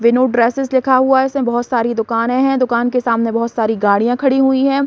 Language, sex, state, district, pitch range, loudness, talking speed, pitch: Hindi, female, Bihar, Saran, 230-265 Hz, -15 LUFS, 235 wpm, 245 Hz